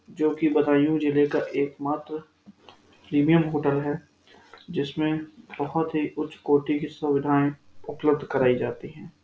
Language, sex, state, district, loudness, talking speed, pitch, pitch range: Hindi, male, Uttar Pradesh, Budaun, -25 LUFS, 135 wpm, 150 Hz, 145-155 Hz